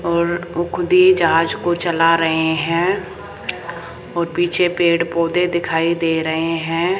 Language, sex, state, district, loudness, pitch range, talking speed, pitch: Hindi, female, Rajasthan, Jaipur, -17 LUFS, 165-175 Hz, 145 wpm, 170 Hz